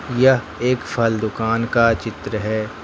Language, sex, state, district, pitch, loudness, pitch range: Hindi, male, Jharkhand, Ranchi, 115 Hz, -19 LUFS, 110-120 Hz